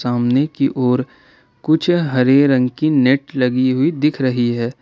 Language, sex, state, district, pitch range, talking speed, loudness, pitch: Hindi, male, Jharkhand, Ranchi, 125-145 Hz, 160 wpm, -16 LUFS, 130 Hz